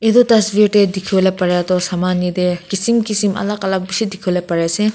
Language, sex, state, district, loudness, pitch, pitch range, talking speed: Nagamese, female, Nagaland, Kohima, -16 LUFS, 190 Hz, 180-210 Hz, 195 wpm